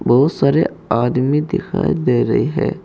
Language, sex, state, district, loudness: Hindi, male, Uttar Pradesh, Saharanpur, -17 LUFS